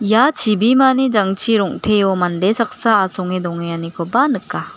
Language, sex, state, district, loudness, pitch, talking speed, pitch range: Garo, female, Meghalaya, West Garo Hills, -16 LUFS, 210 Hz, 115 wpm, 185-235 Hz